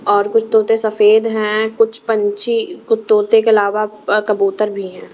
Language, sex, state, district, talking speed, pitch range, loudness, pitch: Hindi, female, Punjab, Kapurthala, 165 wpm, 210-225 Hz, -15 LUFS, 215 Hz